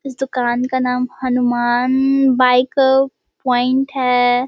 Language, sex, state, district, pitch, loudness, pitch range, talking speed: Hindi, female, Bihar, Muzaffarpur, 255 Hz, -16 LUFS, 250-265 Hz, 105 wpm